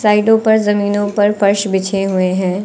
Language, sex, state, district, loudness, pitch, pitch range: Hindi, female, Uttar Pradesh, Lucknow, -14 LUFS, 205 Hz, 195-210 Hz